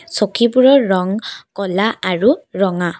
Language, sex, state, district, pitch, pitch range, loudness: Assamese, female, Assam, Kamrup Metropolitan, 200 Hz, 185-235 Hz, -15 LUFS